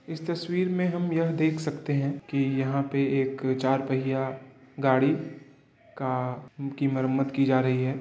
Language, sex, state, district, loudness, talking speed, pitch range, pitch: Hindi, male, Uttar Pradesh, Varanasi, -27 LUFS, 165 wpm, 130-150 Hz, 135 Hz